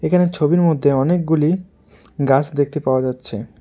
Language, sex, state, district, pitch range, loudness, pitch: Bengali, male, West Bengal, Alipurduar, 140-175 Hz, -18 LUFS, 150 Hz